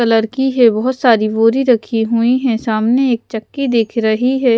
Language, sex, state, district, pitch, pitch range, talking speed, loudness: Hindi, female, Punjab, Pathankot, 235 Hz, 225-255 Hz, 195 wpm, -14 LUFS